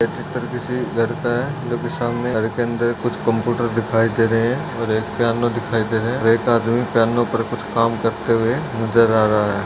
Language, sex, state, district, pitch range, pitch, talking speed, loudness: Hindi, male, Uttarakhand, Uttarkashi, 115-120 Hz, 115 Hz, 230 wpm, -19 LUFS